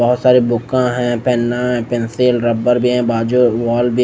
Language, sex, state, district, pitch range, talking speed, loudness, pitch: Hindi, male, Odisha, Nuapada, 120-125 Hz, 195 wpm, -15 LUFS, 120 Hz